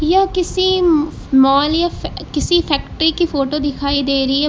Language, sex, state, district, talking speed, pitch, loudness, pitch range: Hindi, female, Uttar Pradesh, Lucknow, 160 wpm, 300 Hz, -16 LUFS, 280-345 Hz